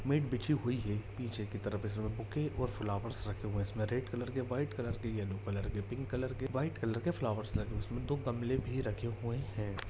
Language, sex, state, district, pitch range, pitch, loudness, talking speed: Hindi, male, Jharkhand, Jamtara, 105-125 Hz, 115 Hz, -38 LUFS, 255 wpm